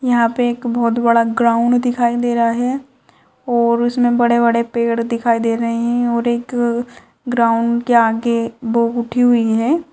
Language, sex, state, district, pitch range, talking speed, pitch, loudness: Hindi, female, Bihar, Purnia, 235-240 Hz, 170 wpm, 235 Hz, -16 LUFS